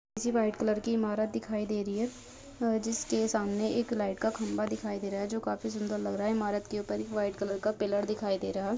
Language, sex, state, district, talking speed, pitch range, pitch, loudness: Hindi, female, Goa, North and South Goa, 245 wpm, 205-225 Hz, 215 Hz, -32 LUFS